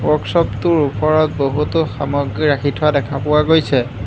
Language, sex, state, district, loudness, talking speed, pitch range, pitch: Assamese, male, Assam, Hailakandi, -16 LUFS, 135 wpm, 135-155 Hz, 145 Hz